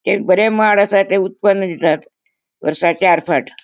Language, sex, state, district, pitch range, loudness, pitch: Konkani, female, Goa, North and South Goa, 170-200 Hz, -15 LUFS, 195 Hz